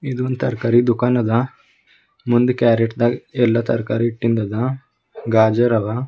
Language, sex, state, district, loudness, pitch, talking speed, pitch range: Kannada, male, Karnataka, Bidar, -18 LUFS, 120 Hz, 120 wpm, 115-125 Hz